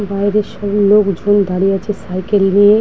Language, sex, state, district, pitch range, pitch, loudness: Bengali, female, West Bengal, Dakshin Dinajpur, 195-205 Hz, 205 Hz, -14 LUFS